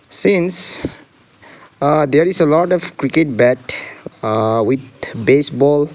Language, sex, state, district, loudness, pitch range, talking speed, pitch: English, male, Sikkim, Gangtok, -15 LUFS, 130-160 Hz, 120 wpm, 145 Hz